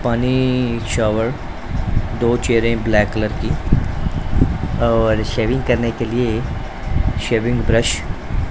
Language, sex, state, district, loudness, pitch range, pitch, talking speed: Hindi, male, Punjab, Pathankot, -19 LUFS, 110-120 Hz, 115 Hz, 115 wpm